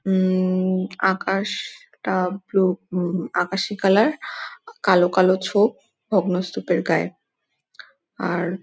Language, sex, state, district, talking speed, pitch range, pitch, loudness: Bengali, female, West Bengal, Dakshin Dinajpur, 95 wpm, 185-195 Hz, 185 Hz, -22 LUFS